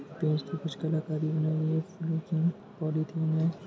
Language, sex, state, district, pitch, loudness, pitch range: Hindi, male, Jharkhand, Sahebganj, 160 Hz, -31 LUFS, 155-165 Hz